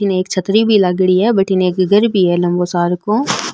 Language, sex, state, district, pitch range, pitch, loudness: Marwari, female, Rajasthan, Nagaur, 180-205 Hz, 185 Hz, -14 LUFS